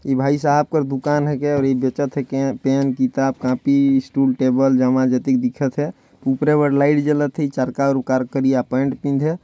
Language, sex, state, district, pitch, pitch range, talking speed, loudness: Chhattisgarhi, male, Chhattisgarh, Jashpur, 135 Hz, 130-145 Hz, 165 wpm, -19 LUFS